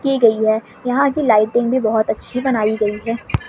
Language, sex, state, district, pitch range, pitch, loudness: Hindi, female, Madhya Pradesh, Umaria, 220-255 Hz, 230 Hz, -17 LUFS